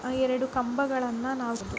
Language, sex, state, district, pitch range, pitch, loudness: Kannada, female, Karnataka, Dakshina Kannada, 245-260 Hz, 255 Hz, -29 LUFS